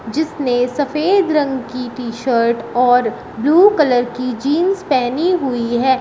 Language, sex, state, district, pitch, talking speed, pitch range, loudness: Hindi, male, Uttar Pradesh, Shamli, 255 Hz, 140 wpm, 245-305 Hz, -16 LUFS